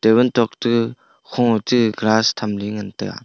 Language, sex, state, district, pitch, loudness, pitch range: Wancho, male, Arunachal Pradesh, Longding, 110 Hz, -19 LUFS, 105-120 Hz